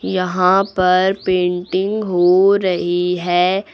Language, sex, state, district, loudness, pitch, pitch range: Hindi, female, Uttar Pradesh, Lucknow, -16 LUFS, 185 Hz, 180-190 Hz